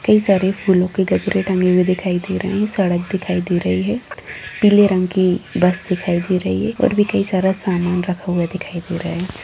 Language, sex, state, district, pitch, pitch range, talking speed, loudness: Hindi, female, Bihar, Darbhanga, 185 Hz, 180-195 Hz, 225 wpm, -18 LUFS